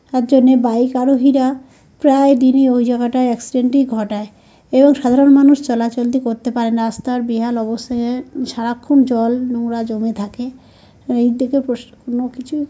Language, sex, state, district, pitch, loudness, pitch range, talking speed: Bengali, male, West Bengal, North 24 Parganas, 245 Hz, -15 LUFS, 235-265 Hz, 155 wpm